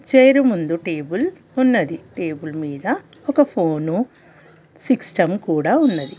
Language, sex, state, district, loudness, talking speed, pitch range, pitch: Telugu, female, Telangana, Hyderabad, -19 LUFS, 115 wpm, 160-265 Hz, 185 Hz